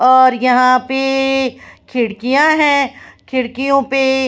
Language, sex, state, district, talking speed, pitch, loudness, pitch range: Hindi, female, Bihar, Patna, 125 wpm, 265 Hz, -14 LUFS, 255-270 Hz